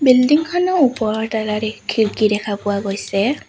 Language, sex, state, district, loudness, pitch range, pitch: Assamese, female, Assam, Sonitpur, -18 LUFS, 210-260 Hz, 220 Hz